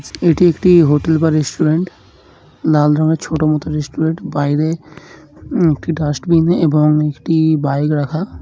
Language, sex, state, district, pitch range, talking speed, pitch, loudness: Bengali, male, West Bengal, Jhargram, 150-165 Hz, 130 wpm, 155 Hz, -15 LUFS